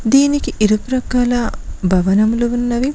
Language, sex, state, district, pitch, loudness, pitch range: Telugu, female, Telangana, Mahabubabad, 240 Hz, -16 LUFS, 215-260 Hz